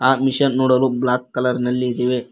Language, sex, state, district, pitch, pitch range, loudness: Kannada, male, Karnataka, Koppal, 125 Hz, 125-130 Hz, -18 LUFS